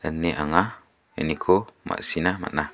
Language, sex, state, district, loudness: Garo, male, Meghalaya, West Garo Hills, -24 LUFS